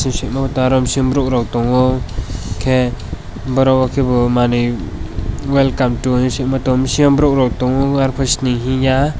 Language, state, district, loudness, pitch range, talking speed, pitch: Kokborok, Tripura, West Tripura, -16 LUFS, 120-135 Hz, 105 wpm, 130 Hz